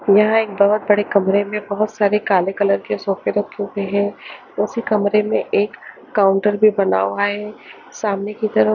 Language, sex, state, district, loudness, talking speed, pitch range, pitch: Hindi, female, Haryana, Charkhi Dadri, -18 LUFS, 190 wpm, 200-210 Hz, 205 Hz